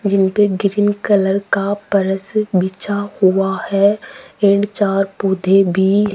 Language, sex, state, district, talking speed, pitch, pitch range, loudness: Hindi, female, Rajasthan, Jaipur, 135 wpm, 200 Hz, 195-205 Hz, -16 LUFS